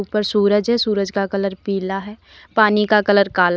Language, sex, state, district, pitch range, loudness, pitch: Hindi, female, Uttar Pradesh, Lalitpur, 195-210 Hz, -18 LUFS, 205 Hz